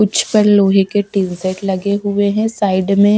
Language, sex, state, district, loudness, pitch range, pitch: Hindi, female, Punjab, Kapurthala, -15 LUFS, 195-205 Hz, 200 Hz